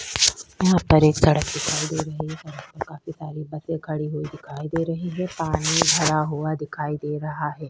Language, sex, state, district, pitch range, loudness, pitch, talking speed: Hindi, female, Chhattisgarh, Kabirdham, 150-160 Hz, -22 LUFS, 155 Hz, 205 wpm